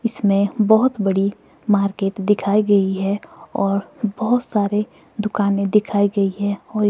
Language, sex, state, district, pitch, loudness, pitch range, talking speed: Hindi, female, Himachal Pradesh, Shimla, 205 Hz, -19 LUFS, 200-210 Hz, 120 wpm